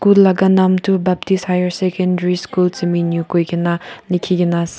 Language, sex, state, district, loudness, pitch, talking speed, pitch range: Nagamese, female, Nagaland, Kohima, -16 LUFS, 180 Hz, 160 wpm, 175-185 Hz